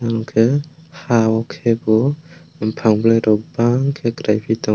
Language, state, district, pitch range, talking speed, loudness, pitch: Kokborok, Tripura, West Tripura, 110-140 Hz, 165 wpm, -17 LUFS, 115 Hz